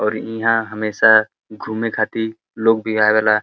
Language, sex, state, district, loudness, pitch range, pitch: Bhojpuri, male, Uttar Pradesh, Deoria, -17 LUFS, 110-115 Hz, 110 Hz